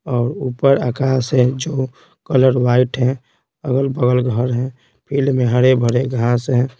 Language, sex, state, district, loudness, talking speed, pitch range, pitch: Hindi, male, Bihar, Patna, -17 LUFS, 150 wpm, 125-135 Hz, 125 Hz